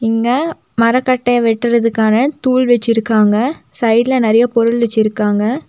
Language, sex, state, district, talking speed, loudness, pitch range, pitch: Tamil, female, Tamil Nadu, Nilgiris, 95 wpm, -14 LUFS, 225-250 Hz, 235 Hz